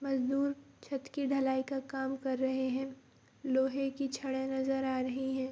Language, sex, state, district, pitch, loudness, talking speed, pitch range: Hindi, female, Bihar, Vaishali, 265 Hz, -34 LUFS, 175 wpm, 265-275 Hz